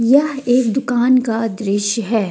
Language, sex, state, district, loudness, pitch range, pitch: Hindi, female, Jharkhand, Deoghar, -16 LUFS, 225-255 Hz, 240 Hz